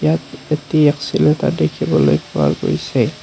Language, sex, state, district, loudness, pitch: Assamese, male, Assam, Kamrup Metropolitan, -17 LUFS, 135 Hz